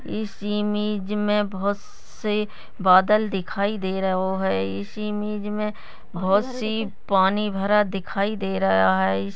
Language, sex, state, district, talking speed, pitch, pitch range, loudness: Hindi, female, Goa, North and South Goa, 135 wpm, 200 Hz, 190-210 Hz, -23 LUFS